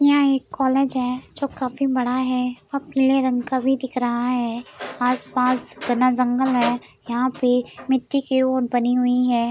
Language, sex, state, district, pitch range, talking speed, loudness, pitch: Hindi, female, Uttar Pradesh, Deoria, 245-265 Hz, 185 wpm, -21 LUFS, 255 Hz